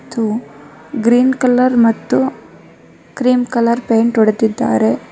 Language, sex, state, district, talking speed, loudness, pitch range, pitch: Kannada, female, Karnataka, Bangalore, 95 wpm, -14 LUFS, 225-250 Hz, 235 Hz